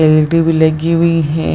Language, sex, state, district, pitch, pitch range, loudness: Hindi, female, Bihar, Jahanabad, 160 Hz, 155-165 Hz, -12 LUFS